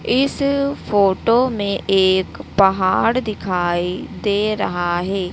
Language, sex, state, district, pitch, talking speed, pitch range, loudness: Hindi, female, Madhya Pradesh, Dhar, 195 Hz, 100 wpm, 185-230 Hz, -18 LUFS